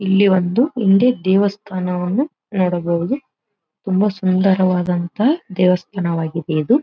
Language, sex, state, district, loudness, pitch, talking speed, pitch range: Kannada, female, Karnataka, Belgaum, -18 LUFS, 190 Hz, 80 wpm, 180-210 Hz